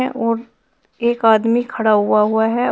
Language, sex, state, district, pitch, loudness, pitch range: Hindi, female, Uttar Pradesh, Shamli, 230 Hz, -16 LUFS, 220-240 Hz